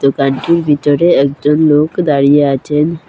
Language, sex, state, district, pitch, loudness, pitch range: Bengali, female, Assam, Hailakandi, 145 Hz, -12 LUFS, 140-155 Hz